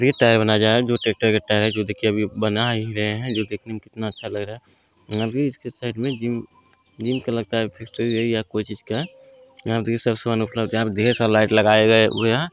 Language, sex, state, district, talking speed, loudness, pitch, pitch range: Hindi, male, Bihar, Araria, 235 wpm, -21 LUFS, 110 Hz, 110-120 Hz